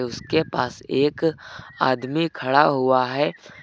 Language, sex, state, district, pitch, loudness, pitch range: Hindi, male, Uttar Pradesh, Lucknow, 140 Hz, -22 LUFS, 130-155 Hz